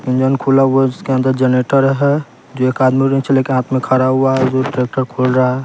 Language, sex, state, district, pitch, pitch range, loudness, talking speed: Hindi, male, Bihar, West Champaran, 130 Hz, 130-135 Hz, -14 LUFS, 245 wpm